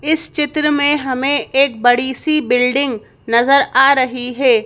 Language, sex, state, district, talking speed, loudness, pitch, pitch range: Hindi, female, Madhya Pradesh, Bhopal, 155 wpm, -14 LUFS, 270 Hz, 245-285 Hz